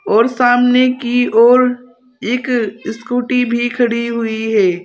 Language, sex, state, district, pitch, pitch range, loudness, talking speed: Hindi, female, Uttar Pradesh, Saharanpur, 245 Hz, 230-250 Hz, -14 LUFS, 125 wpm